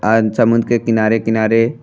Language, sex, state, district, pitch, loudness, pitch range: Bhojpuri, male, Uttar Pradesh, Deoria, 115 Hz, -14 LUFS, 110-115 Hz